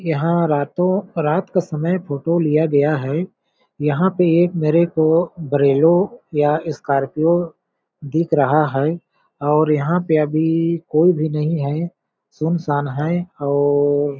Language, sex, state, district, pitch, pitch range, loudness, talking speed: Hindi, male, Chhattisgarh, Balrampur, 160 Hz, 150-170 Hz, -18 LUFS, 125 wpm